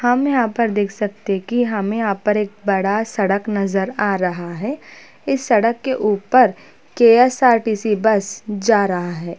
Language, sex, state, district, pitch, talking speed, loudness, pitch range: Hindi, female, Maharashtra, Chandrapur, 210 Hz, 165 wpm, -18 LUFS, 200-235 Hz